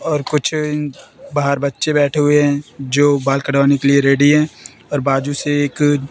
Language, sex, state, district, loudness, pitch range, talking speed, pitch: Hindi, female, Madhya Pradesh, Katni, -16 LUFS, 140-145 Hz, 175 wpm, 145 Hz